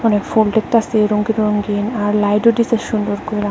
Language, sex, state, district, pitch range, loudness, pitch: Bengali, female, Tripura, West Tripura, 205-220 Hz, -16 LUFS, 215 Hz